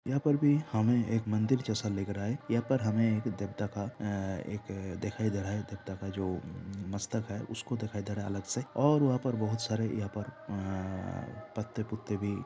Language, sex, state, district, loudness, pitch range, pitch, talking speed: Hindi, male, Jharkhand, Sahebganj, -33 LUFS, 100-115 Hz, 105 Hz, 220 wpm